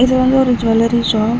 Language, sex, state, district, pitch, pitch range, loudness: Tamil, female, Tamil Nadu, Chennai, 235 Hz, 230-255 Hz, -14 LUFS